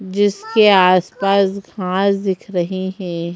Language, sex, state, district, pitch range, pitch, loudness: Hindi, female, Madhya Pradesh, Bhopal, 185-200 Hz, 190 Hz, -16 LUFS